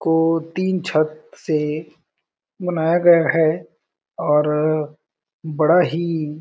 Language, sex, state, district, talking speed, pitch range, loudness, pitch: Hindi, male, Chhattisgarh, Balrampur, 95 wpm, 155-170 Hz, -19 LUFS, 160 Hz